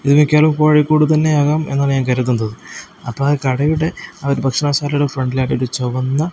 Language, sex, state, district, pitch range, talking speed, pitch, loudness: Malayalam, male, Kerala, Kozhikode, 130-150 Hz, 150 wpm, 145 Hz, -16 LUFS